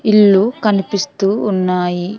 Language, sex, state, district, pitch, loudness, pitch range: Telugu, female, Andhra Pradesh, Sri Satya Sai, 195 Hz, -14 LUFS, 185-210 Hz